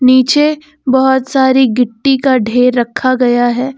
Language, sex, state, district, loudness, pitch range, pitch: Hindi, female, Uttar Pradesh, Lucknow, -11 LUFS, 245-265 Hz, 260 Hz